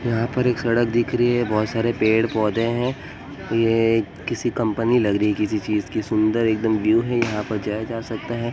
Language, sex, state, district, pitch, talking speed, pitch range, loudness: Hindi, male, Uttar Pradesh, Muzaffarnagar, 115 Hz, 225 wpm, 110-120 Hz, -21 LUFS